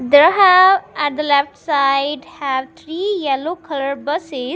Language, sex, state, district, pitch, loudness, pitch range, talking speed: English, female, Punjab, Kapurthala, 295 Hz, -16 LUFS, 275-340 Hz, 145 wpm